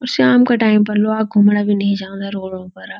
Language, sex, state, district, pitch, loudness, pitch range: Garhwali, female, Uttarakhand, Uttarkashi, 205 Hz, -15 LUFS, 195-215 Hz